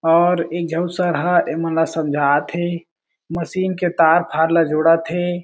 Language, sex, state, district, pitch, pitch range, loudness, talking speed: Chhattisgarhi, male, Chhattisgarh, Jashpur, 170 Hz, 160-175 Hz, -18 LUFS, 175 wpm